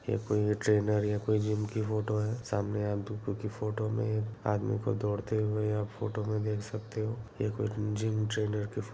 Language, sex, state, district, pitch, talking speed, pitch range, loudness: Hindi, male, Bihar, Bhagalpur, 105 Hz, 210 wpm, 105-110 Hz, -32 LUFS